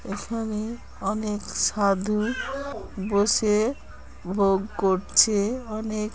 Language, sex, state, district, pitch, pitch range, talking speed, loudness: Bengali, female, West Bengal, Kolkata, 210 Hz, 200-220 Hz, 70 wpm, -25 LUFS